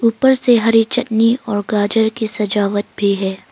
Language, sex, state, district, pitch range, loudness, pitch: Hindi, female, Arunachal Pradesh, Longding, 205-230 Hz, -16 LUFS, 220 Hz